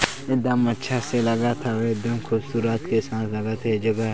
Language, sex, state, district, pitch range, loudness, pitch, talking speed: Chhattisgarhi, male, Chhattisgarh, Sarguja, 110-120 Hz, -24 LUFS, 115 Hz, 190 wpm